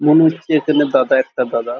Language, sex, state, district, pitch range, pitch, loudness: Bengali, male, West Bengal, Kolkata, 145-160 Hz, 150 Hz, -15 LUFS